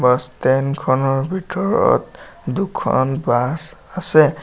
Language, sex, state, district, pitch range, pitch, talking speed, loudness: Assamese, male, Assam, Sonitpur, 130-180 Hz, 140 Hz, 95 wpm, -18 LUFS